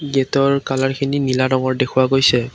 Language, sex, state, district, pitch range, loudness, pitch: Assamese, male, Assam, Kamrup Metropolitan, 130-140 Hz, -17 LUFS, 135 Hz